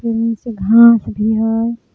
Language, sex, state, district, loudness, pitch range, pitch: Magahi, female, Jharkhand, Palamu, -13 LUFS, 220-235 Hz, 230 Hz